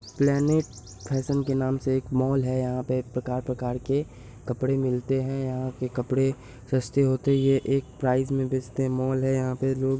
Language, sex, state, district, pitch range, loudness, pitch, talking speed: Hindi, male, Bihar, Saharsa, 125-135 Hz, -26 LUFS, 130 Hz, 190 wpm